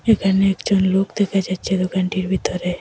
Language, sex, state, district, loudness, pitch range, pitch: Bengali, female, Assam, Hailakandi, -19 LUFS, 185-195 Hz, 190 Hz